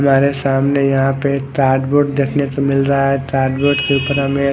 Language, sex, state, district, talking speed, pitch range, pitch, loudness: Hindi, male, Odisha, Khordha, 200 wpm, 135-140 Hz, 140 Hz, -15 LUFS